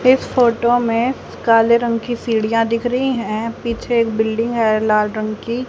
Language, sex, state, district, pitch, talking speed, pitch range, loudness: Hindi, female, Haryana, Jhajjar, 230 Hz, 170 wpm, 225-240 Hz, -17 LUFS